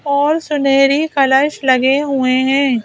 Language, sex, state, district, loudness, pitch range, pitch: Hindi, female, Madhya Pradesh, Bhopal, -14 LUFS, 265-290 Hz, 275 Hz